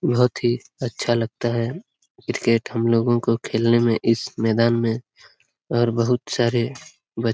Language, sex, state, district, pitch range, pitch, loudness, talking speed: Hindi, male, Bihar, Lakhisarai, 115-120 Hz, 115 Hz, -21 LUFS, 155 wpm